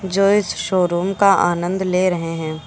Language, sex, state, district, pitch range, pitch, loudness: Hindi, female, Uttar Pradesh, Lucknow, 175-195 Hz, 185 Hz, -18 LUFS